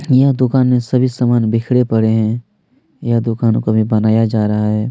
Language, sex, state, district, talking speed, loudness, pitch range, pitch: Hindi, male, Chhattisgarh, Kabirdham, 195 wpm, -14 LUFS, 110-125 Hz, 115 Hz